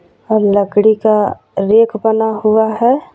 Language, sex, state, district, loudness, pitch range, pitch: Hindi, female, Jharkhand, Ranchi, -13 LUFS, 210-220 Hz, 220 Hz